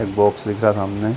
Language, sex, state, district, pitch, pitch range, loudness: Hindi, male, Chhattisgarh, Bastar, 105 Hz, 100-110 Hz, -19 LUFS